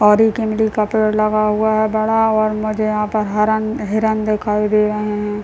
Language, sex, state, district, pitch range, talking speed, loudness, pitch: Hindi, male, Bihar, Muzaffarpur, 210-220 Hz, 210 wpm, -17 LUFS, 215 Hz